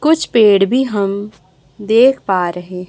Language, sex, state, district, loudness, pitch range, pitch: Hindi, female, Chhattisgarh, Raipur, -13 LUFS, 180-235 Hz, 205 Hz